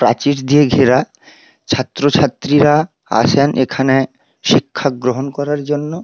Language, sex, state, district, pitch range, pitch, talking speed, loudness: Bengali, male, West Bengal, Paschim Medinipur, 130-145 Hz, 140 Hz, 100 wpm, -15 LUFS